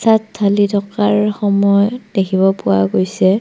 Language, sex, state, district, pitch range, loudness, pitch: Assamese, female, Assam, Kamrup Metropolitan, 190-210 Hz, -15 LUFS, 200 Hz